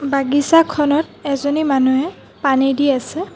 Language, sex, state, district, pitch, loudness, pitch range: Assamese, female, Assam, Sonitpur, 285 Hz, -16 LUFS, 275-300 Hz